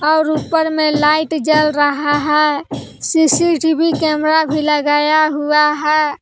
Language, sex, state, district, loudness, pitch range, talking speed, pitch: Hindi, female, Jharkhand, Palamu, -14 LUFS, 300-315 Hz, 125 wpm, 305 Hz